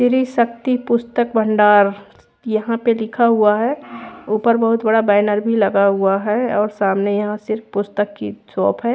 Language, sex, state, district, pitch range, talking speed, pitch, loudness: Hindi, female, Odisha, Khordha, 205-235 Hz, 165 wpm, 215 Hz, -17 LUFS